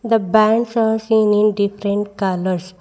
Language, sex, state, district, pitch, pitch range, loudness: English, female, Karnataka, Bangalore, 210 Hz, 200-220 Hz, -17 LUFS